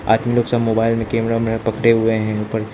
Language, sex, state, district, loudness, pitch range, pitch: Hindi, male, Arunachal Pradesh, Lower Dibang Valley, -18 LUFS, 110-115 Hz, 115 Hz